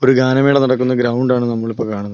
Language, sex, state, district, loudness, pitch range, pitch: Malayalam, male, Kerala, Kollam, -15 LUFS, 115-130 Hz, 125 Hz